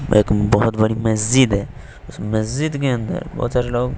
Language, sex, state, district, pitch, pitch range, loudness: Hindi, female, Bihar, West Champaran, 115 Hz, 105-125 Hz, -18 LUFS